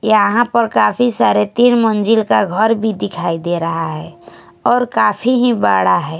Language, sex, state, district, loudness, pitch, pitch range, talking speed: Hindi, female, Punjab, Kapurthala, -14 LUFS, 215 Hz, 170-240 Hz, 175 wpm